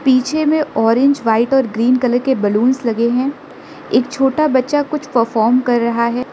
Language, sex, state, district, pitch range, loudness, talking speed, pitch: Hindi, female, Arunachal Pradesh, Lower Dibang Valley, 235-275 Hz, -15 LUFS, 180 wpm, 255 Hz